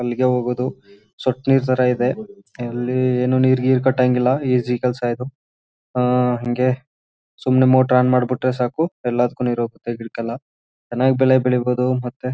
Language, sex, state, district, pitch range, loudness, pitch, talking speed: Kannada, male, Karnataka, Chamarajanagar, 120-130 Hz, -19 LUFS, 125 Hz, 120 wpm